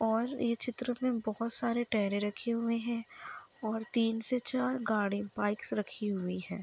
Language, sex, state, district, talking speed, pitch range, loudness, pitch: Hindi, female, Chhattisgarh, Kabirdham, 170 wpm, 210-245 Hz, -34 LUFS, 230 Hz